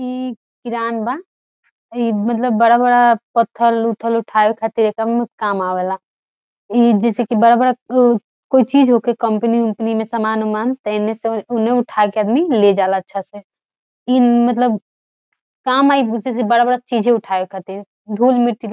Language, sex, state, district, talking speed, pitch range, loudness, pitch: Bhojpuri, female, Bihar, Saran, 140 wpm, 215-245 Hz, -16 LUFS, 230 Hz